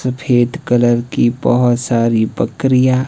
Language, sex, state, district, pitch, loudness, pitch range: Hindi, male, Himachal Pradesh, Shimla, 125 Hz, -14 LUFS, 120-130 Hz